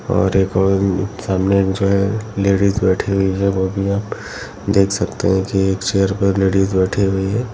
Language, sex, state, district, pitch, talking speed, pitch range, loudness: Hindi, male, Bihar, Bhagalpur, 95 Hz, 200 wpm, 95-100 Hz, -17 LUFS